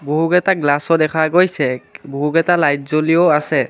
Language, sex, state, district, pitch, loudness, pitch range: Assamese, male, Assam, Kamrup Metropolitan, 155 Hz, -15 LUFS, 145-170 Hz